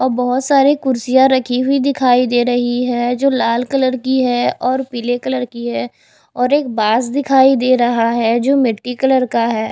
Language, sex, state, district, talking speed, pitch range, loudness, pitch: Hindi, female, Bihar, West Champaran, 200 wpm, 240-265 Hz, -15 LUFS, 250 Hz